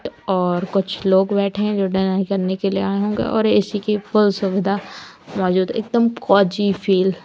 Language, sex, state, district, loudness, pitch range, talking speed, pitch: Hindi, female, Uttar Pradesh, Lalitpur, -19 LUFS, 190-205 Hz, 175 wpm, 195 Hz